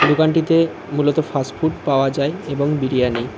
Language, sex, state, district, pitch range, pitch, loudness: Bengali, male, West Bengal, Alipurduar, 135-160 Hz, 145 Hz, -19 LUFS